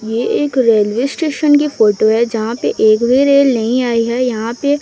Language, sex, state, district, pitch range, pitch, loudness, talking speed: Hindi, female, Odisha, Sambalpur, 225-280 Hz, 240 Hz, -13 LUFS, 210 wpm